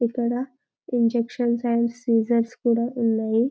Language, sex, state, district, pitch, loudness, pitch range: Telugu, female, Telangana, Karimnagar, 235 Hz, -23 LUFS, 230-245 Hz